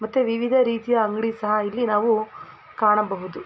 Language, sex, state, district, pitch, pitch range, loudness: Kannada, female, Karnataka, Mysore, 225 Hz, 210-245 Hz, -22 LUFS